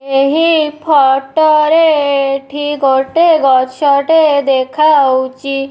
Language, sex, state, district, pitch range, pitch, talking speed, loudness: Odia, female, Odisha, Nuapada, 270-310 Hz, 280 Hz, 85 wpm, -11 LUFS